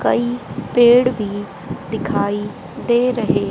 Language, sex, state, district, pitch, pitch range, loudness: Hindi, female, Haryana, Rohtak, 235 Hz, 205-245 Hz, -18 LUFS